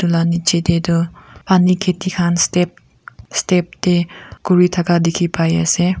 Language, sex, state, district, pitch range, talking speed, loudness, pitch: Nagamese, female, Nagaland, Kohima, 170-180 Hz, 150 wpm, -16 LUFS, 175 Hz